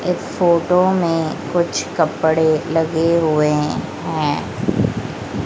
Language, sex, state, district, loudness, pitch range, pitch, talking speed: Hindi, female, Madhya Pradesh, Dhar, -18 LUFS, 150-170 Hz, 160 Hz, 90 wpm